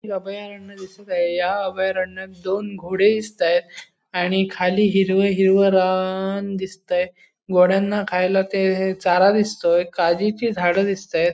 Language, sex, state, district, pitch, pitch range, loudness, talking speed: Marathi, male, Goa, North and South Goa, 190 Hz, 185-200 Hz, -20 LUFS, 125 wpm